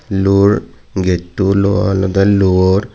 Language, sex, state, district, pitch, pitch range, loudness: Chakma, male, Tripura, Dhalai, 95 Hz, 95-100 Hz, -13 LUFS